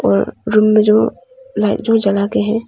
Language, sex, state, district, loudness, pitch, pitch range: Hindi, female, Arunachal Pradesh, Papum Pare, -14 LUFS, 215 Hz, 210-225 Hz